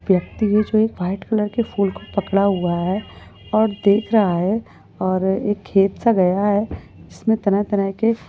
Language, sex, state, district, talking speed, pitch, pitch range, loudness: Hindi, female, Maharashtra, Pune, 175 wpm, 200 Hz, 190-215 Hz, -19 LUFS